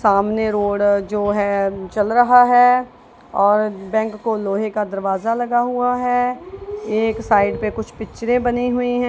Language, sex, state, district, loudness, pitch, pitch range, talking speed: Hindi, female, Punjab, Kapurthala, -18 LUFS, 220 Hz, 205-245 Hz, 160 wpm